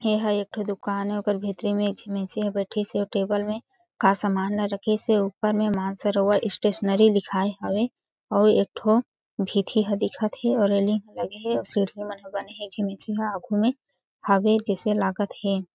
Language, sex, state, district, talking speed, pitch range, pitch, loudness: Chhattisgarhi, female, Chhattisgarh, Jashpur, 210 wpm, 200-215 Hz, 205 Hz, -25 LUFS